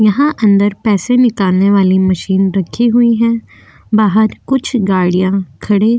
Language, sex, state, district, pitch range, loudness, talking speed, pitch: Hindi, female, Uttar Pradesh, Jyotiba Phule Nagar, 190-230 Hz, -12 LUFS, 140 wpm, 210 Hz